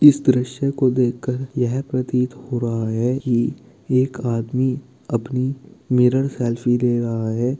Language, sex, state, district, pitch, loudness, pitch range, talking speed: Hindi, male, Bihar, Kishanganj, 125 Hz, -21 LUFS, 120-130 Hz, 140 wpm